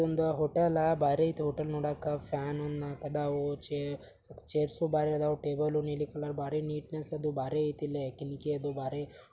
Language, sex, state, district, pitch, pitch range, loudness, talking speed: Kannada, male, Karnataka, Belgaum, 150 Hz, 145-150 Hz, -33 LUFS, 155 wpm